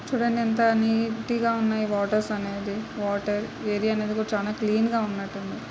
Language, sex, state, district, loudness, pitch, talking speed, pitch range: Telugu, female, Andhra Pradesh, Chittoor, -26 LUFS, 215 Hz, 145 wpm, 205-225 Hz